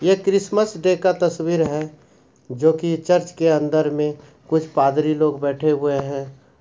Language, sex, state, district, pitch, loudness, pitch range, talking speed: Hindi, male, Bihar, Supaul, 155 Hz, -20 LUFS, 150-170 Hz, 165 wpm